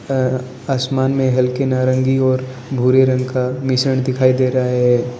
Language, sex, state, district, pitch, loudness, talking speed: Hindi, male, Arunachal Pradesh, Lower Dibang Valley, 130 Hz, -17 LUFS, 150 wpm